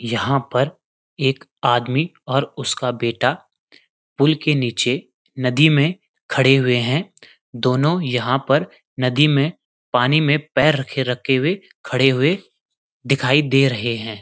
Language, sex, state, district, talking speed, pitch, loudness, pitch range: Hindi, male, Uttarakhand, Uttarkashi, 140 wpm, 135 Hz, -19 LUFS, 125-150 Hz